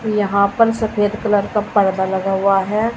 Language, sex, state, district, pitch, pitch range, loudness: Hindi, female, Uttar Pradesh, Saharanpur, 205 Hz, 195-215 Hz, -17 LUFS